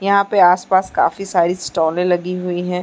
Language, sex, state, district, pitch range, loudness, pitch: Hindi, female, Chhattisgarh, Bastar, 175-190 Hz, -16 LUFS, 180 Hz